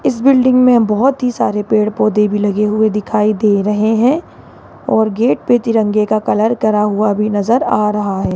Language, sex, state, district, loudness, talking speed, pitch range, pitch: Hindi, female, Rajasthan, Jaipur, -13 LUFS, 200 wpm, 210-240 Hz, 215 Hz